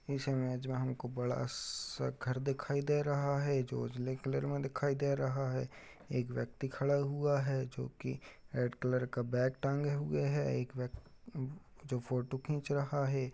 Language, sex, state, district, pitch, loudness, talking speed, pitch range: Hindi, male, Uttar Pradesh, Budaun, 135 Hz, -36 LUFS, 175 wpm, 125-140 Hz